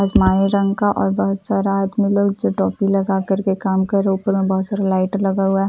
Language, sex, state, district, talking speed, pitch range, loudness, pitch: Hindi, female, Bihar, Katihar, 240 wpm, 195-200 Hz, -18 LUFS, 195 Hz